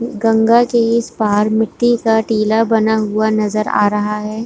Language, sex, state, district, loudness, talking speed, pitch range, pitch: Hindi, female, Jharkhand, Sahebganj, -15 LUFS, 175 wpm, 215-230 Hz, 220 Hz